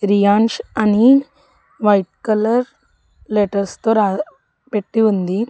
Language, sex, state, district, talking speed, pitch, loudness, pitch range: Telugu, female, Telangana, Hyderabad, 85 wpm, 215 Hz, -17 LUFS, 205-250 Hz